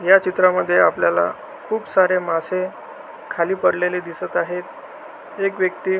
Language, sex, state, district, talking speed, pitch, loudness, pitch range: Marathi, male, Maharashtra, Solapur, 130 wpm, 185 Hz, -19 LUFS, 180-190 Hz